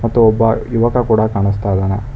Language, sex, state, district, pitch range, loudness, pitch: Kannada, male, Karnataka, Bangalore, 100-115 Hz, -14 LUFS, 110 Hz